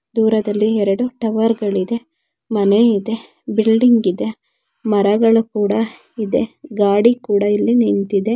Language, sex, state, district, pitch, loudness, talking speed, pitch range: Kannada, female, Karnataka, Dakshina Kannada, 220 Hz, -17 LUFS, 110 wpm, 205-230 Hz